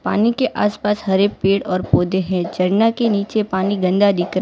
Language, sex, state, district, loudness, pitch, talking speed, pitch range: Hindi, female, Gujarat, Valsad, -18 LUFS, 200 Hz, 205 wpm, 185-210 Hz